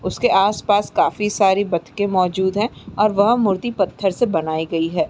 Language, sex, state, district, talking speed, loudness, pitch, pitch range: Hindi, female, Bihar, Araria, 175 wpm, -19 LUFS, 200 Hz, 185-210 Hz